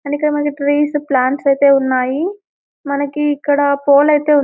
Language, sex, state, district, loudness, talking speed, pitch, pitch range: Telugu, female, Telangana, Karimnagar, -15 LUFS, 150 wpm, 285 Hz, 280-295 Hz